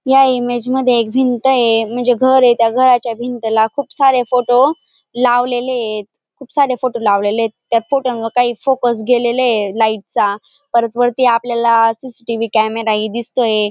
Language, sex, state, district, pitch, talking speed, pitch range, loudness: Marathi, female, Maharashtra, Dhule, 245 Hz, 170 wpm, 225-255 Hz, -14 LUFS